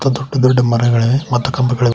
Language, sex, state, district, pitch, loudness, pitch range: Kannada, male, Karnataka, Koppal, 125 Hz, -14 LUFS, 120-130 Hz